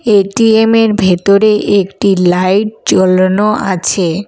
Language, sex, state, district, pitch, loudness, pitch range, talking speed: Bengali, female, West Bengal, Alipurduar, 200 Hz, -10 LUFS, 185-215 Hz, 100 wpm